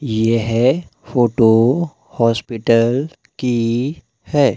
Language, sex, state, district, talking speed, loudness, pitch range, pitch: Hindi, male, Madhya Pradesh, Umaria, 65 wpm, -17 LUFS, 115-135 Hz, 120 Hz